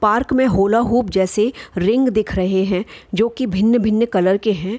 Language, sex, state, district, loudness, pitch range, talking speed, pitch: Hindi, female, Bihar, Gopalganj, -17 LUFS, 190-235 Hz, 175 wpm, 215 Hz